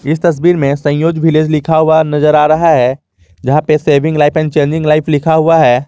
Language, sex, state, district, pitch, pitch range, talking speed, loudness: Hindi, male, Jharkhand, Garhwa, 155 Hz, 145-160 Hz, 215 wpm, -11 LUFS